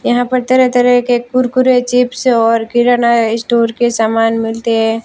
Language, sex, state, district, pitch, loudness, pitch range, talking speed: Hindi, female, Rajasthan, Barmer, 240 Hz, -12 LUFS, 230-250 Hz, 180 wpm